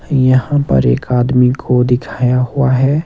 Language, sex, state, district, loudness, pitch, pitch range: Hindi, male, Himachal Pradesh, Shimla, -13 LUFS, 125 Hz, 125-135 Hz